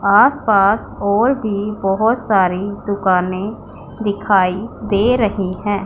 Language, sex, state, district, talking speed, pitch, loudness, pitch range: Hindi, female, Punjab, Pathankot, 115 wpm, 200 Hz, -17 LUFS, 195-215 Hz